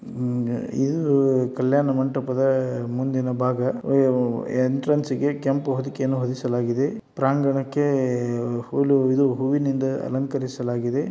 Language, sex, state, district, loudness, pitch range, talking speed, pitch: Kannada, male, Karnataka, Dharwad, -23 LUFS, 125-140 Hz, 85 wpm, 130 Hz